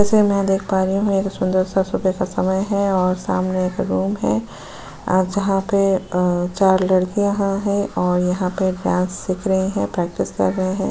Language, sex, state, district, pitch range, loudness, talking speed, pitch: Hindi, female, Uttar Pradesh, Jalaun, 180-195 Hz, -19 LUFS, 205 wpm, 190 Hz